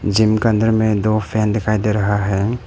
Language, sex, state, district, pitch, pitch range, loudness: Hindi, male, Arunachal Pradesh, Papum Pare, 110 Hz, 105-110 Hz, -17 LUFS